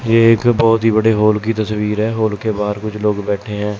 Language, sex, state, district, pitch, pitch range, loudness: Hindi, male, Chandigarh, Chandigarh, 110 Hz, 105-115 Hz, -16 LUFS